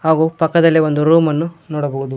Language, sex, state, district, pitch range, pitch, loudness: Kannada, male, Karnataka, Koppal, 150-165 Hz, 160 Hz, -15 LUFS